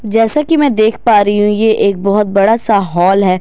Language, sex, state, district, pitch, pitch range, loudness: Hindi, female, Bihar, Katihar, 210 Hz, 200-225 Hz, -11 LUFS